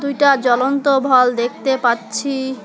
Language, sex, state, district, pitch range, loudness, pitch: Bengali, female, West Bengal, Alipurduar, 245-275 Hz, -16 LUFS, 265 Hz